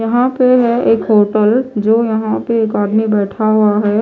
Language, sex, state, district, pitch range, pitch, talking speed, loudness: Hindi, female, Chhattisgarh, Raipur, 210-235 Hz, 220 Hz, 195 wpm, -13 LUFS